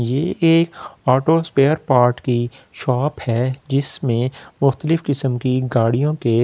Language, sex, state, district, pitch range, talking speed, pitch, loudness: Hindi, male, Delhi, New Delhi, 125-150 Hz, 150 wpm, 130 Hz, -19 LUFS